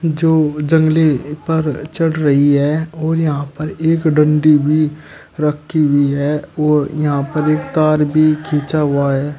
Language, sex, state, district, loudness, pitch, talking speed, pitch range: Hindi, male, Uttar Pradesh, Shamli, -15 LUFS, 150 Hz, 155 wpm, 145-155 Hz